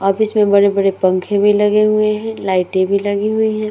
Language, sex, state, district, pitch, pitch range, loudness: Hindi, female, Uttar Pradesh, Muzaffarnagar, 205 Hz, 195-215 Hz, -15 LUFS